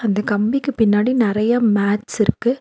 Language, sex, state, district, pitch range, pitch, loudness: Tamil, female, Tamil Nadu, Nilgiris, 205-240 Hz, 215 Hz, -18 LUFS